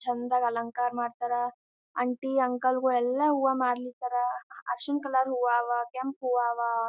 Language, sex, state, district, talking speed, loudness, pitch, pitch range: Kannada, male, Karnataka, Gulbarga, 130 wpm, -29 LUFS, 245 Hz, 240-260 Hz